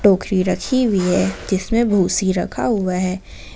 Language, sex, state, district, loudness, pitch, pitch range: Hindi, female, Jharkhand, Ranchi, -18 LUFS, 190 Hz, 185-205 Hz